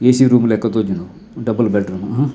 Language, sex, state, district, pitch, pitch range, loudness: Tulu, male, Karnataka, Dakshina Kannada, 115 Hz, 105-125 Hz, -16 LUFS